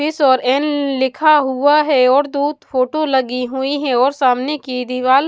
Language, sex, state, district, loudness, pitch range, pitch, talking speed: Hindi, female, Punjab, Kapurthala, -16 LUFS, 255-290 Hz, 270 Hz, 195 wpm